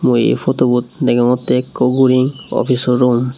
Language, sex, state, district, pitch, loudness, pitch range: Chakma, male, Tripura, Unakoti, 125 Hz, -14 LUFS, 125-130 Hz